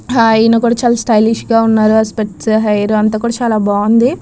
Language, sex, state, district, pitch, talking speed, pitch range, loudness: Telugu, female, Andhra Pradesh, Krishna, 220 Hz, 200 wpm, 215-235 Hz, -12 LUFS